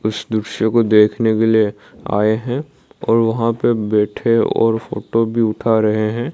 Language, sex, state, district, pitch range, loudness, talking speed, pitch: Hindi, male, Odisha, Malkangiri, 110-115 Hz, -17 LUFS, 170 wpm, 110 Hz